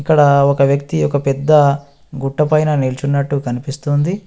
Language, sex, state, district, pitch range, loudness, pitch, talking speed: Telugu, male, Telangana, Adilabad, 140-150 Hz, -15 LUFS, 140 Hz, 125 wpm